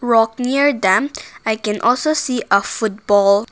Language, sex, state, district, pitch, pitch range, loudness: English, female, Nagaland, Kohima, 225 Hz, 205-255 Hz, -17 LUFS